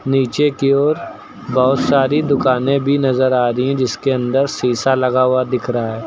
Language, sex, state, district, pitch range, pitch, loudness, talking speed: Hindi, male, Uttar Pradesh, Lucknow, 125-140 Hz, 130 Hz, -16 LUFS, 190 wpm